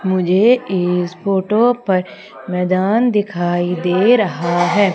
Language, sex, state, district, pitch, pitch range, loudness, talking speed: Hindi, female, Madhya Pradesh, Umaria, 185 Hz, 180-210 Hz, -16 LUFS, 110 wpm